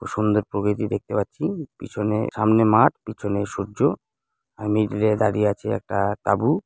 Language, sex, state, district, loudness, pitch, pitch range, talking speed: Bengali, male, West Bengal, Jalpaiguri, -22 LUFS, 105 Hz, 105-110 Hz, 155 wpm